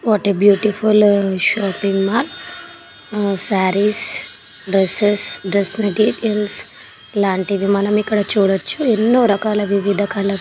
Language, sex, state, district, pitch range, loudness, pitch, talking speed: Telugu, female, Telangana, Nalgonda, 200-215 Hz, -17 LUFS, 205 Hz, 105 wpm